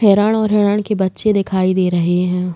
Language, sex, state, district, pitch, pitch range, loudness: Hindi, female, Uttar Pradesh, Jalaun, 195 Hz, 180-210 Hz, -16 LUFS